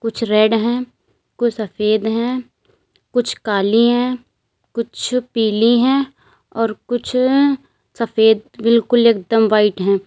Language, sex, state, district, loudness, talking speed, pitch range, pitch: Hindi, female, Uttar Pradesh, Lalitpur, -17 LUFS, 115 wpm, 220-245 Hz, 230 Hz